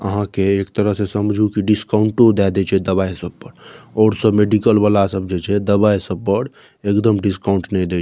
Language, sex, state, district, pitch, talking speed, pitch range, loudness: Maithili, male, Bihar, Saharsa, 100 Hz, 210 wpm, 95-105 Hz, -17 LUFS